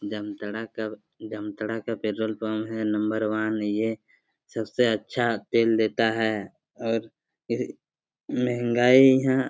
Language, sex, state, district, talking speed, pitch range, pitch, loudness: Hindi, male, Jharkhand, Jamtara, 125 wpm, 110-115 Hz, 110 Hz, -25 LUFS